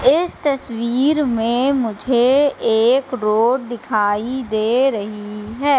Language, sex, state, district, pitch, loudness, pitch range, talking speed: Hindi, female, Madhya Pradesh, Katni, 240 Hz, -18 LUFS, 220-270 Hz, 105 wpm